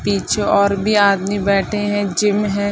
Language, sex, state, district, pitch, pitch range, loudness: Hindi, female, Bihar, Madhepura, 205 Hz, 200-205 Hz, -16 LUFS